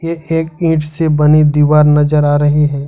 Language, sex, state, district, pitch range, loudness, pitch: Hindi, male, Jharkhand, Ranchi, 150-160 Hz, -12 LUFS, 150 Hz